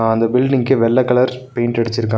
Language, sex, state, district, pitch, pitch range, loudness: Tamil, male, Tamil Nadu, Nilgiris, 120 Hz, 115-130 Hz, -16 LUFS